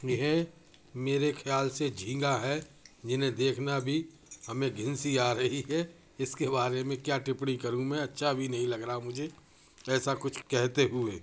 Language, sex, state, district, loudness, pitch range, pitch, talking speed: Hindi, male, Uttar Pradesh, Budaun, -31 LUFS, 125-145 Hz, 135 Hz, 160 wpm